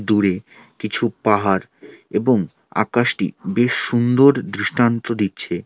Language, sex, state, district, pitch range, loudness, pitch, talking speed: Bengali, male, West Bengal, Alipurduar, 105-120 Hz, -19 LUFS, 115 Hz, 95 wpm